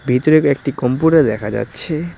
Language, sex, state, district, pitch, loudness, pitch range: Bengali, male, West Bengal, Cooch Behar, 140 Hz, -16 LUFS, 125-155 Hz